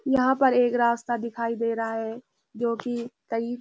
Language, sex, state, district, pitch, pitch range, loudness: Hindi, female, Uttarakhand, Uttarkashi, 235 Hz, 230-245 Hz, -26 LUFS